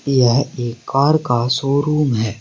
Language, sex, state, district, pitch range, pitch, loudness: Hindi, male, Uttar Pradesh, Saharanpur, 120-140 Hz, 130 Hz, -17 LUFS